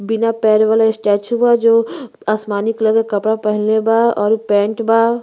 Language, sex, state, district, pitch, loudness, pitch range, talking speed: Bhojpuri, female, Uttar Pradesh, Ghazipur, 220 Hz, -15 LUFS, 215-230 Hz, 185 wpm